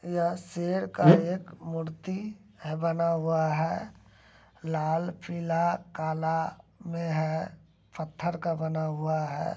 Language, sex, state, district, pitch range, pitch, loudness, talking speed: Angika, male, Bihar, Begusarai, 160-170 Hz, 165 Hz, -29 LUFS, 120 wpm